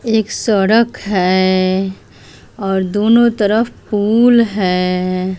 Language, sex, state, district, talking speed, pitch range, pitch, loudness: Hindi, female, Bihar, West Champaran, 90 wpm, 185-225 Hz, 205 Hz, -14 LUFS